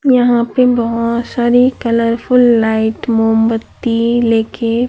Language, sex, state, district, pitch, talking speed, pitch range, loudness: Hindi, female, Chhattisgarh, Raipur, 235 Hz, 110 wpm, 230-245 Hz, -13 LUFS